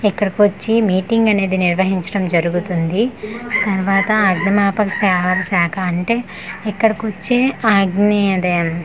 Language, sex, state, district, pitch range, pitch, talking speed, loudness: Telugu, female, Andhra Pradesh, Manyam, 185-215 Hz, 200 Hz, 95 wpm, -16 LUFS